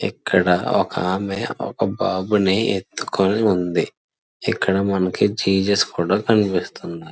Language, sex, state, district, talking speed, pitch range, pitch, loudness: Telugu, male, Andhra Pradesh, Srikakulam, 95 wpm, 90-100 Hz, 95 Hz, -20 LUFS